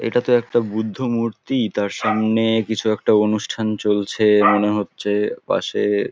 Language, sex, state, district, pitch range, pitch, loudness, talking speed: Bengali, male, West Bengal, Paschim Medinipur, 105-115 Hz, 110 Hz, -19 LUFS, 145 wpm